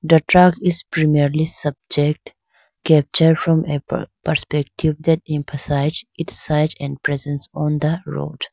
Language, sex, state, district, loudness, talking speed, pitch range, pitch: English, female, Arunachal Pradesh, Lower Dibang Valley, -18 LUFS, 125 wpm, 145-160 Hz, 155 Hz